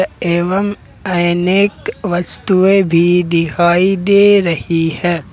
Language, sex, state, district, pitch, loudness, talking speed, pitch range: Hindi, male, Jharkhand, Ranchi, 175 Hz, -13 LUFS, 90 wpm, 170-195 Hz